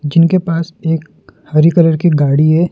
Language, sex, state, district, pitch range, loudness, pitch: Hindi, male, Madhya Pradesh, Dhar, 155-170 Hz, -12 LUFS, 165 Hz